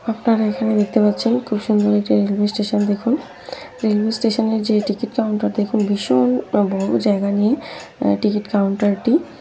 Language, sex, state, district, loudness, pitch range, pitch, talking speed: Bengali, female, West Bengal, North 24 Parganas, -18 LUFS, 205-225 Hz, 210 Hz, 145 wpm